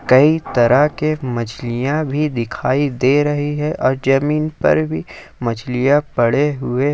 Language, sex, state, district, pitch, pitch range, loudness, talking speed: Hindi, male, Jharkhand, Ranchi, 135 Hz, 120-150 Hz, -17 LUFS, 140 wpm